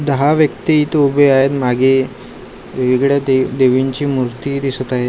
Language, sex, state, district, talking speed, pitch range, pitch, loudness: Marathi, male, Maharashtra, Gondia, 140 wpm, 130-140 Hz, 135 Hz, -14 LUFS